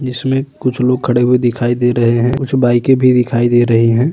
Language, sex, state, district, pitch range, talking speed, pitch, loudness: Hindi, male, Uttar Pradesh, Budaun, 120-130 Hz, 230 wpm, 125 Hz, -13 LUFS